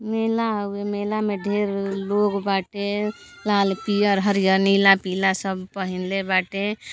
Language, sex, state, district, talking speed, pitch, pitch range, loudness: Bhojpuri, female, Uttar Pradesh, Gorakhpur, 130 wpm, 200 Hz, 195-205 Hz, -22 LUFS